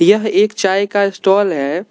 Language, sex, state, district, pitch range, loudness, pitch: Hindi, male, Arunachal Pradesh, Lower Dibang Valley, 190-210 Hz, -14 LUFS, 200 Hz